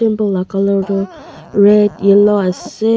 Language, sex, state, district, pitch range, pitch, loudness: Nagamese, female, Nagaland, Kohima, 195-210 Hz, 200 Hz, -13 LUFS